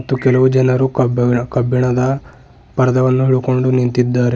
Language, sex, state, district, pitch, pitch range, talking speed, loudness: Kannada, male, Karnataka, Bidar, 130 Hz, 125-130 Hz, 110 wpm, -15 LUFS